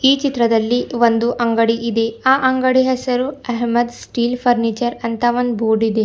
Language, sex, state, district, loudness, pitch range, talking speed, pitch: Kannada, female, Karnataka, Bidar, -17 LUFS, 230-250 Hz, 150 wpm, 240 Hz